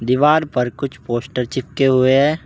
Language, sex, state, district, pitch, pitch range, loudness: Hindi, male, Uttar Pradesh, Saharanpur, 130 Hz, 125-140 Hz, -17 LUFS